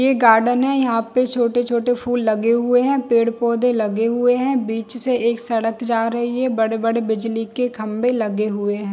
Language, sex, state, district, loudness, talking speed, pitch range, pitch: Hindi, female, Chhattisgarh, Bilaspur, -19 LUFS, 200 wpm, 225-245 Hz, 235 Hz